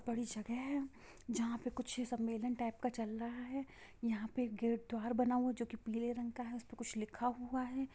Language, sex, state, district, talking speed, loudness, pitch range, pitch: Hindi, female, Bihar, Sitamarhi, 235 wpm, -41 LUFS, 230-250 Hz, 240 Hz